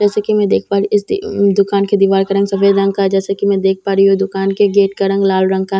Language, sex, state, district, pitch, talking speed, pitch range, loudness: Hindi, female, Bihar, Katihar, 195 Hz, 350 wpm, 195-200 Hz, -14 LUFS